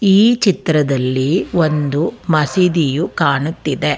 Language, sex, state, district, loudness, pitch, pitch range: Kannada, female, Karnataka, Bangalore, -15 LUFS, 155 Hz, 145-180 Hz